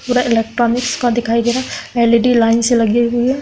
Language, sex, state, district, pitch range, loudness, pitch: Hindi, female, Uttar Pradesh, Hamirpur, 235-245 Hz, -15 LUFS, 240 Hz